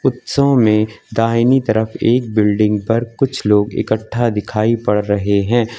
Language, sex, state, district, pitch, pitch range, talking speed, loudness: Hindi, male, Uttar Pradesh, Lucknow, 110 Hz, 105-120 Hz, 145 wpm, -16 LUFS